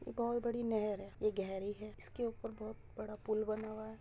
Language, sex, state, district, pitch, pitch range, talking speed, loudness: Hindi, female, Uttar Pradesh, Muzaffarnagar, 215 Hz, 210-225 Hz, 240 wpm, -40 LUFS